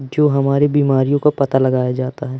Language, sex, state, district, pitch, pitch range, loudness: Hindi, male, Madhya Pradesh, Umaria, 140 Hz, 130-145 Hz, -16 LUFS